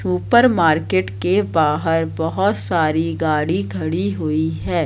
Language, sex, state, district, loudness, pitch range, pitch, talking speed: Hindi, female, Madhya Pradesh, Katni, -18 LUFS, 100-165 Hz, 155 Hz, 125 wpm